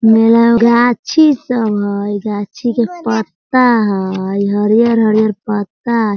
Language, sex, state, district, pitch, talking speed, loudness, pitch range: Hindi, female, Bihar, Sitamarhi, 220 Hz, 115 wpm, -13 LUFS, 205-235 Hz